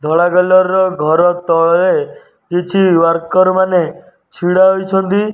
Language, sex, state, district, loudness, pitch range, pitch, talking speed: Odia, male, Odisha, Nuapada, -12 LUFS, 170-190 Hz, 185 Hz, 100 wpm